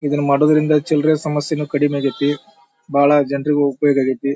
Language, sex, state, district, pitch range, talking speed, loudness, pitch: Kannada, male, Karnataka, Bijapur, 140-150 Hz, 140 wpm, -17 LUFS, 145 Hz